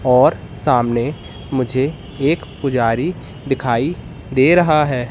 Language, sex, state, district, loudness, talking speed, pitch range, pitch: Hindi, male, Madhya Pradesh, Katni, -17 LUFS, 105 wpm, 125-145 Hz, 135 Hz